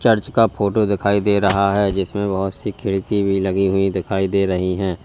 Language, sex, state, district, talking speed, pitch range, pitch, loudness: Hindi, male, Uttar Pradesh, Lalitpur, 215 wpm, 95-105 Hz, 100 Hz, -19 LUFS